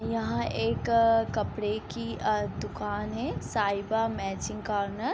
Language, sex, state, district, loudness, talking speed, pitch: Hindi, female, Bihar, Sitamarhi, -29 LUFS, 130 wpm, 200 Hz